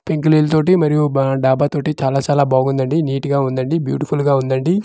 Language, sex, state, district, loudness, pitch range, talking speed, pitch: Telugu, male, Andhra Pradesh, Manyam, -16 LUFS, 135-155 Hz, 185 wpm, 145 Hz